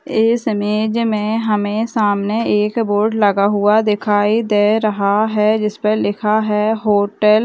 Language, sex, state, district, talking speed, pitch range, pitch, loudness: Hindi, female, Bihar, Madhepura, 145 wpm, 205-220 Hz, 210 Hz, -16 LUFS